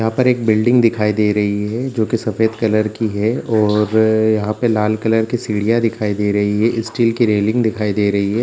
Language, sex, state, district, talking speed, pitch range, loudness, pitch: Hindi, male, Bihar, Gaya, 230 wpm, 105-115 Hz, -16 LUFS, 110 Hz